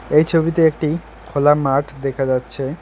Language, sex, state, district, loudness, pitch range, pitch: Bengali, male, West Bengal, Alipurduar, -18 LUFS, 135-160 Hz, 145 Hz